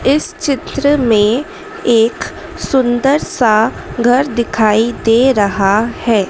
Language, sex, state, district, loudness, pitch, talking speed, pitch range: Hindi, female, Madhya Pradesh, Dhar, -13 LUFS, 240 Hz, 105 wpm, 220-275 Hz